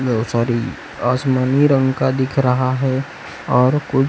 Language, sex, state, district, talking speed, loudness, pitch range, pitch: Hindi, male, Chhattisgarh, Raipur, 145 wpm, -17 LUFS, 125-135 Hz, 130 Hz